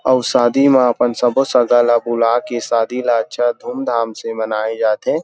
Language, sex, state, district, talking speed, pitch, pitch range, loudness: Chhattisgarhi, male, Chhattisgarh, Rajnandgaon, 195 wpm, 120 Hz, 115-125 Hz, -16 LUFS